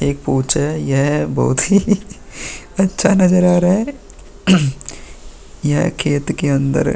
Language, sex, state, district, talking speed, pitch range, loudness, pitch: Hindi, male, Uttar Pradesh, Muzaffarnagar, 140 wpm, 135-185 Hz, -16 LUFS, 150 Hz